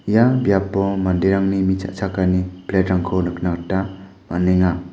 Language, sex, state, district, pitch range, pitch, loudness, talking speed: Garo, male, Meghalaya, West Garo Hills, 90-95 Hz, 95 Hz, -19 LUFS, 110 wpm